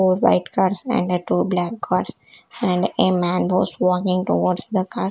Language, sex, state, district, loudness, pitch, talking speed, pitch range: English, female, Chandigarh, Chandigarh, -20 LUFS, 185 Hz, 190 wpm, 180-190 Hz